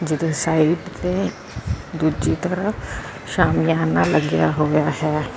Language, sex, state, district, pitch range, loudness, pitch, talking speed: Punjabi, female, Karnataka, Bangalore, 125-175 Hz, -20 LUFS, 155 Hz, 100 wpm